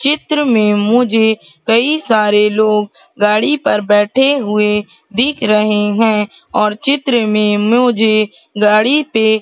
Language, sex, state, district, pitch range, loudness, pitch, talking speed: Hindi, female, Madhya Pradesh, Katni, 210-250 Hz, -13 LUFS, 220 Hz, 120 wpm